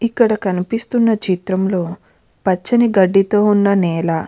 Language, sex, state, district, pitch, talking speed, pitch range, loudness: Telugu, female, Andhra Pradesh, Krishna, 195 Hz, 110 wpm, 180-215 Hz, -16 LUFS